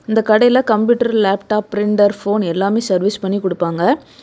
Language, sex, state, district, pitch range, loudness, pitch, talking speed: Tamil, female, Tamil Nadu, Kanyakumari, 195-225 Hz, -15 LUFS, 210 Hz, 140 wpm